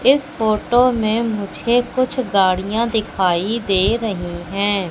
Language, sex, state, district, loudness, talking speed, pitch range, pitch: Hindi, female, Madhya Pradesh, Katni, -18 LUFS, 120 wpm, 195-235 Hz, 220 Hz